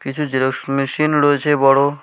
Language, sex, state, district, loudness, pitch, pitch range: Bengali, male, West Bengal, Alipurduar, -16 LUFS, 140 Hz, 135-145 Hz